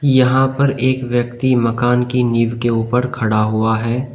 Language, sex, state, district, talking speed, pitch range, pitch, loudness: Hindi, male, Uttar Pradesh, Shamli, 175 wpm, 115-130 Hz, 125 Hz, -16 LUFS